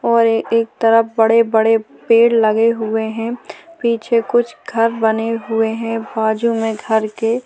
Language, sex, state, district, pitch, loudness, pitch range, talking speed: Hindi, female, Maharashtra, Chandrapur, 225 Hz, -16 LUFS, 220-230 Hz, 170 wpm